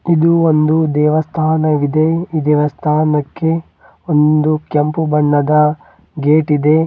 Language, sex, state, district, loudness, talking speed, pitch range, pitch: Kannada, male, Karnataka, Bidar, -14 LUFS, 85 wpm, 150-160 Hz, 155 Hz